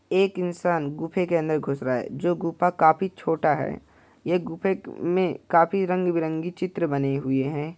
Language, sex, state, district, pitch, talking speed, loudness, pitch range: Hindi, male, Bihar, Purnia, 170 Hz, 185 wpm, -25 LUFS, 150-180 Hz